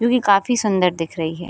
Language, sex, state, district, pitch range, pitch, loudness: Hindi, female, Bihar, Sitamarhi, 170-235 Hz, 195 Hz, -18 LUFS